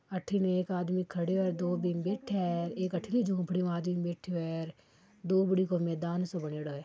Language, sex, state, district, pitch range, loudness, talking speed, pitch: Marwari, female, Rajasthan, Churu, 170-185 Hz, -32 LUFS, 195 wpm, 180 Hz